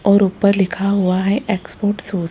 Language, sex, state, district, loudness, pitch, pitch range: Hindi, female, Rajasthan, Jaipur, -17 LUFS, 200 Hz, 190-200 Hz